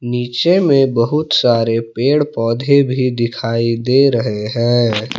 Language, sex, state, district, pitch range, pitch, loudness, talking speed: Hindi, male, Jharkhand, Palamu, 115-135 Hz, 120 Hz, -15 LUFS, 125 wpm